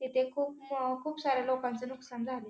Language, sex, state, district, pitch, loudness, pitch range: Marathi, female, Maharashtra, Pune, 260 Hz, -34 LUFS, 255-275 Hz